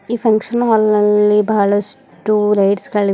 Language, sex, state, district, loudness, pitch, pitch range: Kannada, female, Karnataka, Bidar, -14 LUFS, 210 Hz, 205-220 Hz